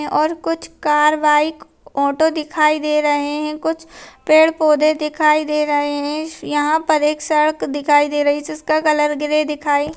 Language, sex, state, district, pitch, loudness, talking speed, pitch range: Hindi, female, Rajasthan, Nagaur, 300 Hz, -17 LUFS, 170 wpm, 295-310 Hz